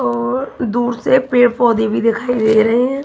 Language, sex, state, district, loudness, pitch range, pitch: Hindi, female, Himachal Pradesh, Shimla, -15 LUFS, 220-245 Hz, 235 Hz